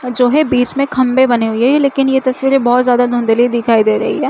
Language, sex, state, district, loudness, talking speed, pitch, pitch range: Chhattisgarhi, female, Chhattisgarh, Jashpur, -12 LUFS, 250 wpm, 250 Hz, 240-265 Hz